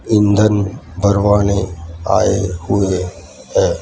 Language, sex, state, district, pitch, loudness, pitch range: Hindi, male, Gujarat, Gandhinagar, 100 Hz, -16 LUFS, 90-100 Hz